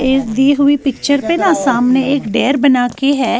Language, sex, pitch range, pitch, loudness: Urdu, female, 250-285 Hz, 275 Hz, -13 LUFS